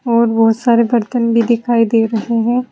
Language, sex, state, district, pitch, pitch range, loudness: Hindi, female, Uttar Pradesh, Saharanpur, 235 Hz, 230-235 Hz, -14 LUFS